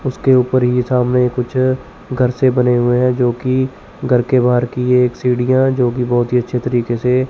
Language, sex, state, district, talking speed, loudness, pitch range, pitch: Hindi, male, Chandigarh, Chandigarh, 195 wpm, -15 LUFS, 125-130 Hz, 125 Hz